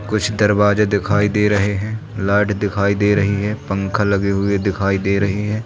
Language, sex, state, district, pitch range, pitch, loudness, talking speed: Hindi, male, Madhya Pradesh, Katni, 100-105 Hz, 105 Hz, -17 LUFS, 190 wpm